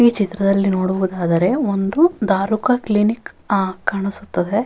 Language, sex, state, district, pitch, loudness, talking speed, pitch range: Kannada, female, Karnataka, Bellary, 200 Hz, -18 LUFS, 115 wpm, 190-220 Hz